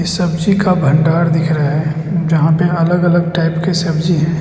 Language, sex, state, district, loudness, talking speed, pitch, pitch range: Hindi, male, Arunachal Pradesh, Lower Dibang Valley, -14 LUFS, 190 wpm, 165 Hz, 160-175 Hz